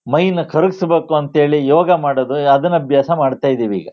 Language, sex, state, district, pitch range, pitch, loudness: Kannada, male, Karnataka, Shimoga, 140-170 Hz, 150 Hz, -15 LUFS